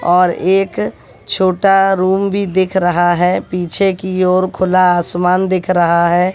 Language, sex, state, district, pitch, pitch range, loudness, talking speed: Hindi, female, Haryana, Jhajjar, 185 Hz, 180-190 Hz, -14 LUFS, 150 wpm